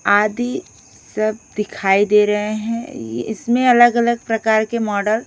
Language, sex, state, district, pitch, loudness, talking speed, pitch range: Hindi, female, Odisha, Khordha, 215 Hz, -17 LUFS, 135 wpm, 210-235 Hz